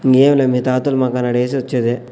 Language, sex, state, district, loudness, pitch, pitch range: Telugu, male, Andhra Pradesh, Sri Satya Sai, -16 LUFS, 130 Hz, 125-135 Hz